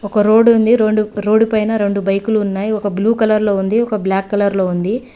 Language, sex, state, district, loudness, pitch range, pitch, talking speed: Telugu, female, Telangana, Hyderabad, -15 LUFS, 200-220 Hz, 215 Hz, 220 wpm